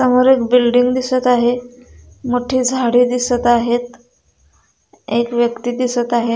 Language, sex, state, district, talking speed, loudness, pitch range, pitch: Marathi, female, Maharashtra, Dhule, 125 wpm, -15 LUFS, 240-250 Hz, 245 Hz